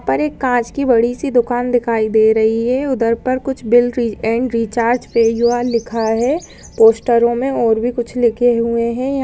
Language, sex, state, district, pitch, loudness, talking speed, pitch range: Hindi, female, Uttar Pradesh, Budaun, 235 Hz, -16 LUFS, 215 wpm, 230-250 Hz